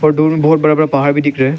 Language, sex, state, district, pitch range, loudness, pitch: Hindi, male, Arunachal Pradesh, Lower Dibang Valley, 145-155 Hz, -12 LUFS, 150 Hz